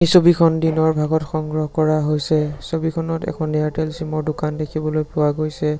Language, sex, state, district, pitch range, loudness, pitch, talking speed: Assamese, male, Assam, Sonitpur, 150-160 Hz, -20 LUFS, 155 Hz, 155 wpm